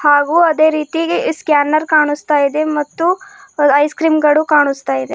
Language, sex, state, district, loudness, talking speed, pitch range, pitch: Kannada, female, Karnataka, Bidar, -14 LUFS, 140 wpm, 290-320 Hz, 305 Hz